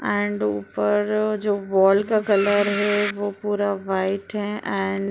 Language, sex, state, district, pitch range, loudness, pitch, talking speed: Hindi, female, Bihar, Sitamarhi, 195-205 Hz, -22 LUFS, 200 Hz, 150 wpm